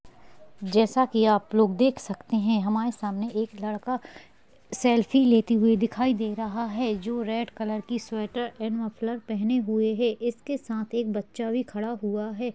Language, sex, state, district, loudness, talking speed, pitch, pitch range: Hindi, female, Uttar Pradesh, Jyotiba Phule Nagar, -26 LUFS, 170 wpm, 225 Hz, 215-240 Hz